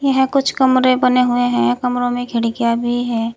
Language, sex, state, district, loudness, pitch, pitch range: Hindi, female, Uttar Pradesh, Saharanpur, -16 LUFS, 245 Hz, 235-255 Hz